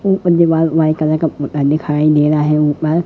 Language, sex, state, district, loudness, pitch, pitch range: Hindi, female, Madhya Pradesh, Katni, -14 LUFS, 155 Hz, 150-160 Hz